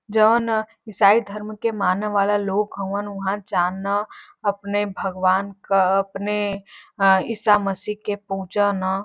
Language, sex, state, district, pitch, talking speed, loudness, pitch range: Bhojpuri, female, Uttar Pradesh, Varanasi, 205 Hz, 140 wpm, -21 LUFS, 195-210 Hz